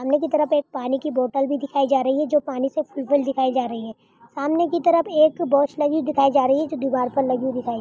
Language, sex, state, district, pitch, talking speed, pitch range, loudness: Hindi, female, Uttar Pradesh, Budaun, 275 Hz, 275 wpm, 260-300 Hz, -21 LUFS